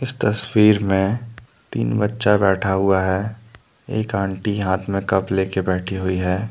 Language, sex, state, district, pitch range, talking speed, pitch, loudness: Hindi, male, Jharkhand, Deoghar, 95-110 Hz, 165 wpm, 100 Hz, -20 LUFS